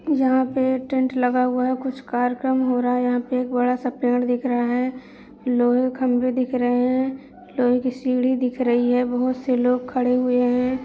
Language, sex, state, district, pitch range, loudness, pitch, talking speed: Hindi, female, Uttar Pradesh, Budaun, 245-255 Hz, -21 LUFS, 250 Hz, 205 wpm